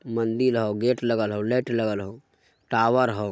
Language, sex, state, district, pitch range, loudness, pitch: Magahi, male, Bihar, Jamui, 105-125 Hz, -24 LUFS, 115 Hz